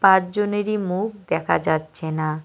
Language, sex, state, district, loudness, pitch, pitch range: Bengali, male, West Bengal, Cooch Behar, -22 LUFS, 190 Hz, 155-205 Hz